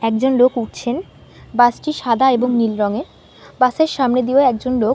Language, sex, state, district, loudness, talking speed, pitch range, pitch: Bengali, female, West Bengal, North 24 Parganas, -17 LUFS, 170 wpm, 235-265 Hz, 250 Hz